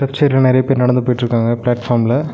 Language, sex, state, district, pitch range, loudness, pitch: Tamil, male, Tamil Nadu, Nilgiris, 120-135 Hz, -15 LUFS, 125 Hz